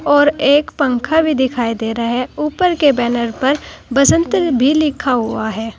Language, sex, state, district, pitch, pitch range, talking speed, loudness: Hindi, female, Uttar Pradesh, Saharanpur, 275 Hz, 240-300 Hz, 175 wpm, -15 LUFS